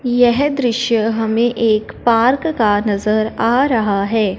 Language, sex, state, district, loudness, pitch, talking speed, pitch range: Hindi, male, Punjab, Fazilka, -15 LUFS, 225 Hz, 135 wpm, 215-245 Hz